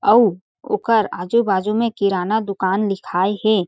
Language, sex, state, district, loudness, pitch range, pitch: Chhattisgarhi, female, Chhattisgarh, Jashpur, -19 LUFS, 190-220 Hz, 200 Hz